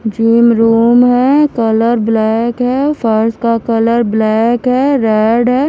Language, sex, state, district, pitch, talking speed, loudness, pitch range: Hindi, female, Himachal Pradesh, Shimla, 230 Hz, 135 wpm, -11 LUFS, 225-245 Hz